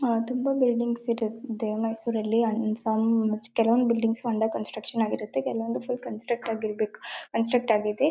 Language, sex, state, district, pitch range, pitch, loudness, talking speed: Kannada, female, Karnataka, Mysore, 220-235 Hz, 225 Hz, -27 LUFS, 95 wpm